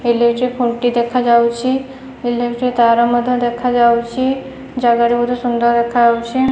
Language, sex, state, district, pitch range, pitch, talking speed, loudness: Odia, female, Odisha, Khordha, 235-250 Hz, 240 Hz, 100 wpm, -15 LUFS